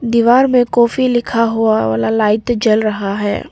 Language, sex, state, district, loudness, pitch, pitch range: Hindi, female, Arunachal Pradesh, Papum Pare, -14 LUFS, 230 Hz, 215-240 Hz